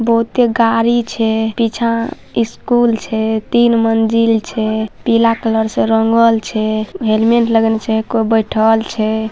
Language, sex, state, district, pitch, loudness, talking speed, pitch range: Maithili, male, Bihar, Saharsa, 225 Hz, -14 LUFS, 130 wpm, 220-230 Hz